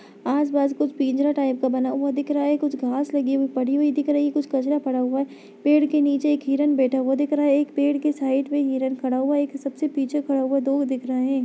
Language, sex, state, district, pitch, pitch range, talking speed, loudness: Hindi, female, Bihar, Bhagalpur, 280 Hz, 265-290 Hz, 250 wpm, -22 LUFS